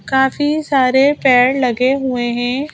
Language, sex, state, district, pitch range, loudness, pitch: Hindi, female, Madhya Pradesh, Bhopal, 250-280 Hz, -14 LUFS, 265 Hz